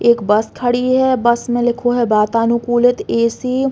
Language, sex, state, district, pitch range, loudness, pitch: Bundeli, female, Uttar Pradesh, Hamirpur, 230-245 Hz, -15 LUFS, 240 Hz